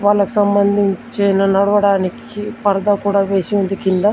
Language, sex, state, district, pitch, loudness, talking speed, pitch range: Telugu, male, Telangana, Komaram Bheem, 200 Hz, -15 LUFS, 115 wpm, 195-205 Hz